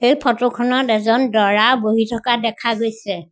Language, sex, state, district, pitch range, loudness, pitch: Assamese, female, Assam, Sonitpur, 220-245 Hz, -17 LUFS, 230 Hz